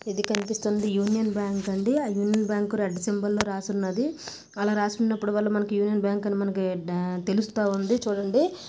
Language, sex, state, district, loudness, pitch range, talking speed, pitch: Telugu, female, Andhra Pradesh, Anantapur, -26 LUFS, 200-215 Hz, 165 wpm, 205 Hz